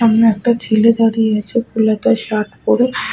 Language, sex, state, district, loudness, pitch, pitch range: Bengali, female, West Bengal, Paschim Medinipur, -15 LUFS, 225 Hz, 215-230 Hz